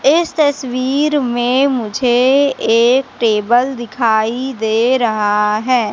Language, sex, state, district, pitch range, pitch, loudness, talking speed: Hindi, female, Madhya Pradesh, Katni, 225-265 Hz, 245 Hz, -14 LUFS, 100 wpm